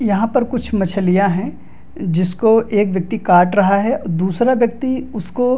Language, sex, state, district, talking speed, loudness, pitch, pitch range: Hindi, male, Bihar, Madhepura, 160 wpm, -16 LUFS, 205 Hz, 190-240 Hz